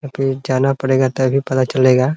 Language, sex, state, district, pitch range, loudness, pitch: Hindi, male, Bihar, Muzaffarpur, 130-135 Hz, -16 LUFS, 130 Hz